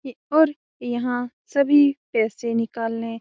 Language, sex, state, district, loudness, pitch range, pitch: Hindi, female, Bihar, Jamui, -22 LUFS, 230-285 Hz, 245 Hz